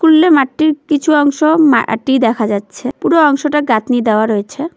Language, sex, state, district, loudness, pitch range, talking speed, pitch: Bengali, female, West Bengal, Cooch Behar, -12 LUFS, 230-310 Hz, 150 wpm, 285 Hz